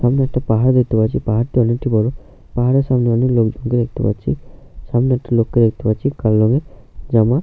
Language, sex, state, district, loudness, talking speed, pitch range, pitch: Bengali, male, West Bengal, Jhargram, -17 LUFS, 195 wpm, 110-130 Hz, 120 Hz